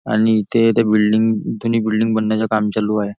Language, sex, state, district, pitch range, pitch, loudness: Marathi, male, Maharashtra, Nagpur, 105-110 Hz, 110 Hz, -17 LUFS